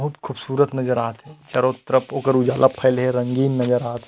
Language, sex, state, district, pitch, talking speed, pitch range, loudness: Chhattisgarhi, male, Chhattisgarh, Rajnandgaon, 130 Hz, 220 wpm, 125-135 Hz, -20 LUFS